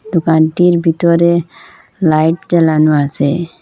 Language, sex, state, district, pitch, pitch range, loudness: Bengali, female, Assam, Hailakandi, 165 Hz, 160-170 Hz, -12 LUFS